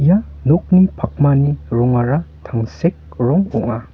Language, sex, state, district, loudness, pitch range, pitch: Garo, male, Meghalaya, North Garo Hills, -16 LUFS, 120-170 Hz, 140 Hz